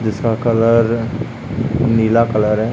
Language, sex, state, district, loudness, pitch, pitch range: Hindi, male, Uttarakhand, Uttarkashi, -16 LUFS, 115 Hz, 110-115 Hz